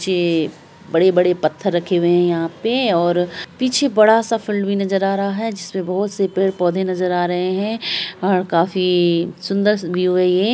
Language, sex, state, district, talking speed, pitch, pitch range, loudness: Hindi, female, Bihar, Araria, 155 wpm, 185 Hz, 175-200 Hz, -18 LUFS